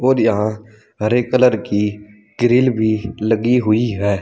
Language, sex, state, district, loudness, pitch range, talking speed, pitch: Hindi, male, Uttar Pradesh, Saharanpur, -17 LUFS, 105-120 Hz, 140 wpm, 110 Hz